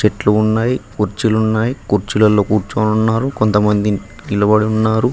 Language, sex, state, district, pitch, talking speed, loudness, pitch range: Telugu, male, Telangana, Mahabubabad, 110 Hz, 115 wpm, -15 LUFS, 105-110 Hz